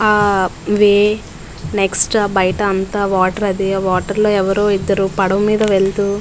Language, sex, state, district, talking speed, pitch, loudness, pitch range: Telugu, female, Andhra Pradesh, Visakhapatnam, 155 wpm, 200 Hz, -15 LUFS, 195-205 Hz